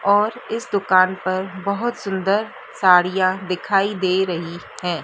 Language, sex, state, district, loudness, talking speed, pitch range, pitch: Hindi, female, Madhya Pradesh, Dhar, -20 LUFS, 130 wpm, 185-200 Hz, 190 Hz